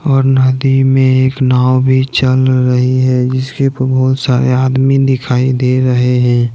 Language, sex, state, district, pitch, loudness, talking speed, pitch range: Hindi, male, Jharkhand, Deoghar, 130 Hz, -11 LUFS, 165 wpm, 125-130 Hz